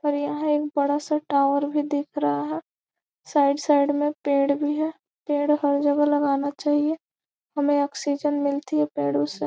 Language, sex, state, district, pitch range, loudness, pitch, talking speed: Hindi, female, Bihar, Gopalganj, 280-295 Hz, -23 LUFS, 290 Hz, 170 wpm